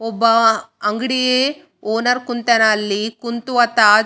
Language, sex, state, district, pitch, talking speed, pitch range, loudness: Kannada, female, Karnataka, Raichur, 230 Hz, 105 wpm, 220-245 Hz, -16 LUFS